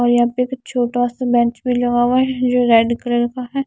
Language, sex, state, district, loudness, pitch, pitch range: Hindi, female, Himachal Pradesh, Shimla, -17 LUFS, 245 Hz, 240-250 Hz